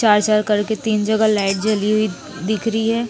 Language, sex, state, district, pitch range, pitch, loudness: Hindi, female, Haryana, Rohtak, 210-220 Hz, 215 Hz, -18 LUFS